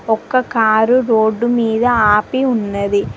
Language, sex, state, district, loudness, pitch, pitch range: Telugu, female, Telangana, Mahabubabad, -14 LUFS, 225 Hz, 215-245 Hz